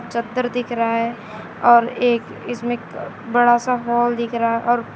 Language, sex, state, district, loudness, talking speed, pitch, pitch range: Hindi, female, Uttar Pradesh, Shamli, -19 LUFS, 180 wpm, 235 Hz, 230-240 Hz